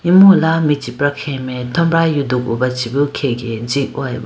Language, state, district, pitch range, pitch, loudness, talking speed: Idu Mishmi, Arunachal Pradesh, Lower Dibang Valley, 125-160 Hz, 140 Hz, -16 LUFS, 185 wpm